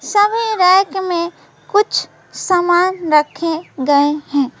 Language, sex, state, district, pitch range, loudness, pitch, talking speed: Hindi, female, West Bengal, Alipurduar, 295-385 Hz, -15 LUFS, 350 Hz, 105 wpm